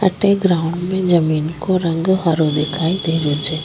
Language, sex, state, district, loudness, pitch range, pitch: Rajasthani, female, Rajasthan, Nagaur, -17 LUFS, 155-185 Hz, 165 Hz